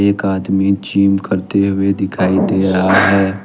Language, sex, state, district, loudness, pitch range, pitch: Hindi, male, Jharkhand, Ranchi, -14 LUFS, 95-100 Hz, 95 Hz